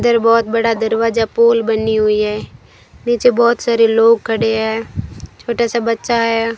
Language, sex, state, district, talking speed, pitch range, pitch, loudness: Hindi, female, Rajasthan, Bikaner, 165 wpm, 220-235 Hz, 230 Hz, -14 LUFS